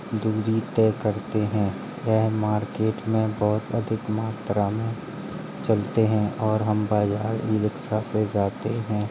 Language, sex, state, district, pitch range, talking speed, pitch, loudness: Hindi, male, Uttar Pradesh, Jalaun, 105-110 Hz, 140 wpm, 110 Hz, -25 LUFS